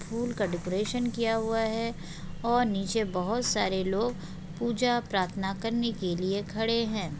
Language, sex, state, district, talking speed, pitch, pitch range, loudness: Hindi, female, Bihar, Jahanabad, 150 wpm, 215 Hz, 185-230 Hz, -29 LUFS